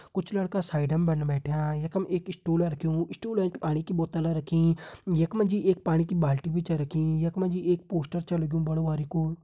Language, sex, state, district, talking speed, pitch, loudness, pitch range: Hindi, male, Uttarakhand, Uttarkashi, 210 wpm, 165 Hz, -28 LUFS, 160-180 Hz